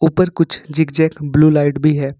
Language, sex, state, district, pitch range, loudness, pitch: Hindi, male, Jharkhand, Ranchi, 145-160 Hz, -15 LUFS, 155 Hz